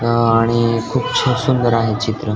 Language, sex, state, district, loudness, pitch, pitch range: Marathi, male, Maharashtra, Dhule, -16 LUFS, 115 Hz, 115-125 Hz